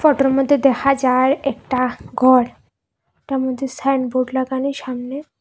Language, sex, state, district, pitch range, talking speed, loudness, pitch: Bengali, female, Assam, Hailakandi, 255-275 Hz, 120 wpm, -18 LUFS, 265 Hz